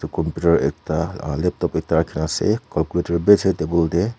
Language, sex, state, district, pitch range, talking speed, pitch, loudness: Nagamese, female, Nagaland, Kohima, 80-90 Hz, 185 wpm, 85 Hz, -20 LUFS